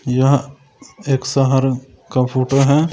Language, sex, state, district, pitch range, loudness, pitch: Maithili, male, Bihar, Samastipur, 130-140 Hz, -17 LUFS, 135 Hz